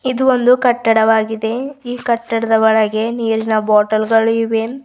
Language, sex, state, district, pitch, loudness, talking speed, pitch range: Kannada, female, Karnataka, Bidar, 225 Hz, -15 LUFS, 125 wpm, 220-245 Hz